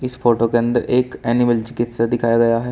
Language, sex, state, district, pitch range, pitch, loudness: Hindi, male, Uttar Pradesh, Shamli, 115-120 Hz, 120 Hz, -18 LUFS